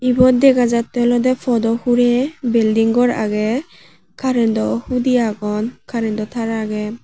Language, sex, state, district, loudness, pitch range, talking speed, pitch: Chakma, female, Tripura, West Tripura, -17 LUFS, 225-250 Hz, 130 wpm, 240 Hz